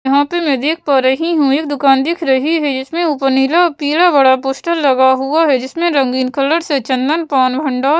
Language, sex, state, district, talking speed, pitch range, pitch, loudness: Hindi, female, Bihar, West Champaran, 215 wpm, 265-320 Hz, 280 Hz, -14 LUFS